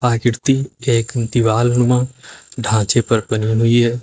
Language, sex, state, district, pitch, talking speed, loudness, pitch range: Hindi, male, Uttar Pradesh, Lucknow, 120 Hz, 135 wpm, -17 LUFS, 115-125 Hz